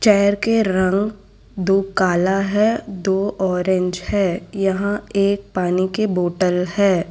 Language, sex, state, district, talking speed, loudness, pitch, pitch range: Hindi, female, Gujarat, Valsad, 125 wpm, -19 LUFS, 195 Hz, 185-200 Hz